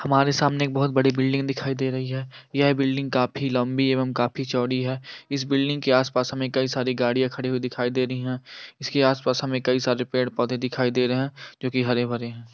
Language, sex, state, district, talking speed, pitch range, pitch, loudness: Hindi, male, Chhattisgarh, Raigarh, 215 wpm, 125-135 Hz, 130 Hz, -24 LUFS